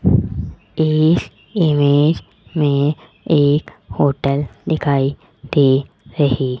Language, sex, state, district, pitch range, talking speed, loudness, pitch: Hindi, female, Rajasthan, Jaipur, 140-155 Hz, 80 wpm, -17 LUFS, 145 Hz